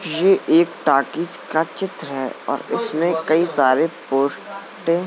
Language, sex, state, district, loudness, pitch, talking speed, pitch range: Hindi, male, Uttar Pradesh, Jalaun, -20 LUFS, 170 Hz, 140 wpm, 155-195 Hz